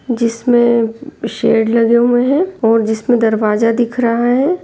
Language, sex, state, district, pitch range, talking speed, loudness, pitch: Hindi, female, Bihar, Jahanabad, 225-245 Hz, 155 wpm, -13 LUFS, 235 Hz